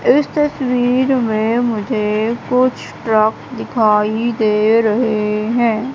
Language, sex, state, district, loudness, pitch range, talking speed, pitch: Hindi, female, Madhya Pradesh, Katni, -16 LUFS, 215-250 Hz, 100 wpm, 230 Hz